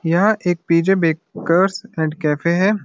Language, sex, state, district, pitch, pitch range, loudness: Hindi, male, Uttarakhand, Uttarkashi, 175 Hz, 165-195 Hz, -18 LUFS